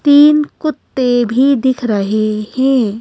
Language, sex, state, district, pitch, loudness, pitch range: Hindi, female, Madhya Pradesh, Bhopal, 255 Hz, -13 LUFS, 220-280 Hz